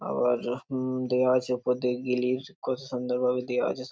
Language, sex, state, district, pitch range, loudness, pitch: Bengali, male, West Bengal, Purulia, 125-130 Hz, -28 LUFS, 125 Hz